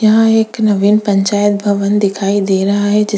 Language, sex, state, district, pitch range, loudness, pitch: Hindi, female, Chhattisgarh, Korba, 200-210 Hz, -13 LUFS, 205 Hz